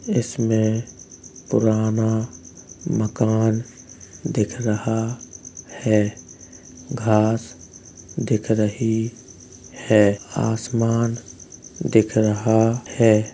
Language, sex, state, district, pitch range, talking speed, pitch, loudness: Hindi, male, Uttar Pradesh, Jalaun, 105-115 Hz, 65 wpm, 110 Hz, -21 LUFS